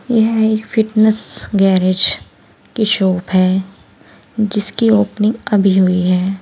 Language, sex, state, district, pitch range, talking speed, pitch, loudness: Hindi, female, Uttar Pradesh, Saharanpur, 190-220 Hz, 110 wpm, 210 Hz, -14 LUFS